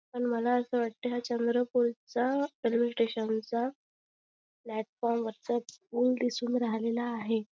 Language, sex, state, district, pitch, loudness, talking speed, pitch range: Marathi, female, Maharashtra, Chandrapur, 235 Hz, -31 LUFS, 120 wpm, 230-245 Hz